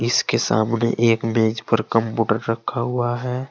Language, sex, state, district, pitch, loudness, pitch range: Hindi, male, Uttar Pradesh, Saharanpur, 115 Hz, -20 LUFS, 115-120 Hz